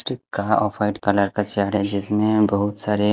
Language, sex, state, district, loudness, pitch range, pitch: Hindi, male, Haryana, Rohtak, -21 LUFS, 100-105 Hz, 105 Hz